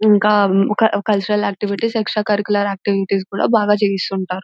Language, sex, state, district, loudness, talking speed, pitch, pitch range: Telugu, female, Telangana, Nalgonda, -17 LUFS, 150 wpm, 205 Hz, 195-210 Hz